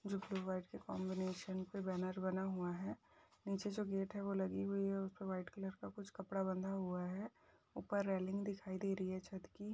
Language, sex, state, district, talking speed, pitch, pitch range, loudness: Hindi, female, Uttar Pradesh, Jyotiba Phule Nagar, 215 wpm, 195 Hz, 185-200 Hz, -44 LUFS